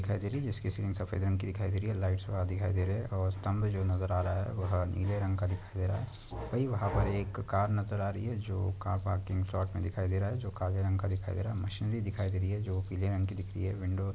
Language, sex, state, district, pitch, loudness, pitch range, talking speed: Hindi, male, Maharashtra, Nagpur, 95 Hz, -34 LUFS, 95-100 Hz, 305 wpm